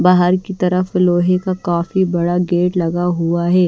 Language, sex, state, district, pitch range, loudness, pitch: Hindi, female, Maharashtra, Washim, 175-185 Hz, -16 LUFS, 180 Hz